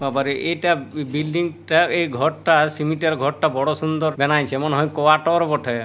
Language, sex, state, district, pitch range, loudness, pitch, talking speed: Bengali, male, West Bengal, Purulia, 140-165 Hz, -20 LUFS, 155 Hz, 165 wpm